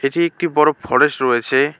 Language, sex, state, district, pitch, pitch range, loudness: Bengali, male, West Bengal, Alipurduar, 140 Hz, 130-160 Hz, -16 LUFS